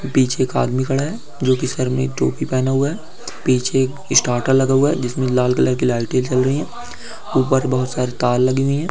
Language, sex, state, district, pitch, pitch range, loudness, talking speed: Hindi, male, West Bengal, Dakshin Dinajpur, 130 Hz, 125-135 Hz, -18 LUFS, 230 wpm